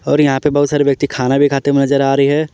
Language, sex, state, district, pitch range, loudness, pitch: Hindi, male, Jharkhand, Palamu, 140-145 Hz, -14 LUFS, 140 Hz